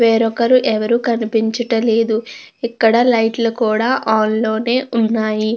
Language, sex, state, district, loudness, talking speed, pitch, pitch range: Telugu, female, Andhra Pradesh, Krishna, -16 LUFS, 120 wpm, 225 Hz, 220-235 Hz